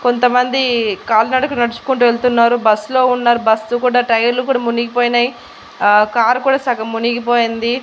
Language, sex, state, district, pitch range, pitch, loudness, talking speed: Telugu, female, Andhra Pradesh, Annamaya, 230-250 Hz, 240 Hz, -14 LUFS, 140 wpm